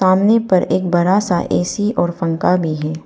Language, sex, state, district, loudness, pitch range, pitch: Hindi, female, Arunachal Pradesh, Papum Pare, -16 LUFS, 170-190 Hz, 180 Hz